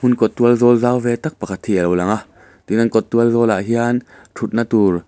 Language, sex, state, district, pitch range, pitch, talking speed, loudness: Mizo, male, Mizoram, Aizawl, 110-120 Hz, 115 Hz, 225 wpm, -17 LUFS